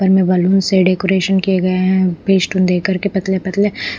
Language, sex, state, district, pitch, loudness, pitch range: Hindi, female, Punjab, Pathankot, 190 Hz, -15 LUFS, 185-190 Hz